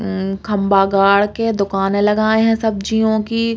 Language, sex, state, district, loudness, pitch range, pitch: Bundeli, female, Uttar Pradesh, Hamirpur, -16 LUFS, 195-220 Hz, 210 Hz